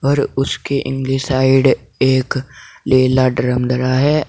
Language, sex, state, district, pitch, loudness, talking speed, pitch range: Hindi, male, Uttar Pradesh, Saharanpur, 130 Hz, -16 LUFS, 125 wpm, 130-135 Hz